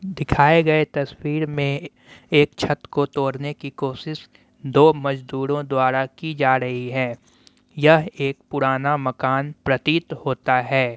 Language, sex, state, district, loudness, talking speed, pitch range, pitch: Hindi, male, Bihar, Muzaffarpur, -21 LUFS, 130 wpm, 130-150 Hz, 140 Hz